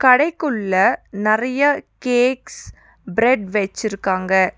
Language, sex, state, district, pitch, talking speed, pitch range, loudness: Tamil, female, Tamil Nadu, Nilgiris, 220 Hz, 65 wpm, 195-255 Hz, -18 LUFS